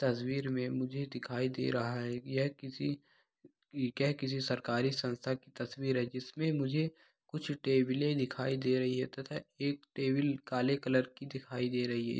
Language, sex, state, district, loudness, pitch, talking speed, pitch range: Hindi, male, Bihar, Saharsa, -35 LUFS, 130 Hz, 160 wpm, 125-140 Hz